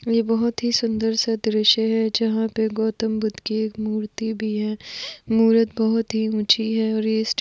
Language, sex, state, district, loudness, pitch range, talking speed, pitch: Hindi, female, Goa, North and South Goa, -21 LUFS, 220-225 Hz, 200 wpm, 220 Hz